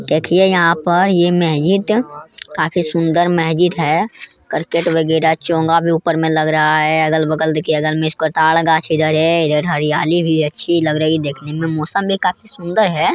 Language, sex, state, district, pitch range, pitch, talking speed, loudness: Hindi, female, Bihar, Jamui, 155-175 Hz, 160 Hz, 170 wpm, -15 LUFS